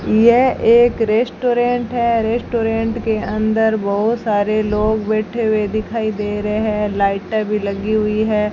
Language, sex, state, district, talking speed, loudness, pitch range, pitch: Hindi, female, Rajasthan, Bikaner, 150 wpm, -17 LUFS, 210-230 Hz, 215 Hz